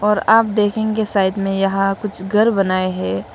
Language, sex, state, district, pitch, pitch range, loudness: Hindi, female, Arunachal Pradesh, Lower Dibang Valley, 195 Hz, 190-210 Hz, -17 LUFS